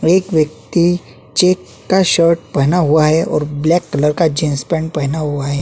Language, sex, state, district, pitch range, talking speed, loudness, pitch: Hindi, male, Uttarakhand, Tehri Garhwal, 150-175 Hz, 170 wpm, -15 LUFS, 160 Hz